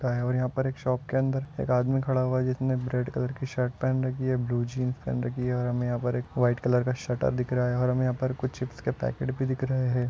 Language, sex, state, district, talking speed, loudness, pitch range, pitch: Hindi, male, Maharashtra, Dhule, 295 wpm, -28 LUFS, 125-130 Hz, 125 Hz